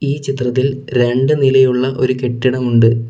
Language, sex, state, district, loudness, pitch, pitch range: Malayalam, male, Kerala, Kollam, -15 LUFS, 130 Hz, 125-135 Hz